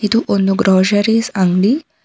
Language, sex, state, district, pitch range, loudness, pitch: Kannada, female, Karnataka, Bangalore, 195-225 Hz, -14 LUFS, 205 Hz